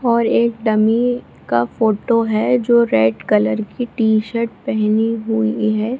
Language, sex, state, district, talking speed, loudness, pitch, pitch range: Hindi, female, Bihar, Supaul, 150 wpm, -17 LUFS, 225 Hz, 215-235 Hz